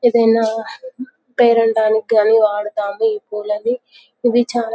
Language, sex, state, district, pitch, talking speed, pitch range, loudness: Telugu, female, Telangana, Karimnagar, 225 Hz, 90 wpm, 215-240 Hz, -16 LUFS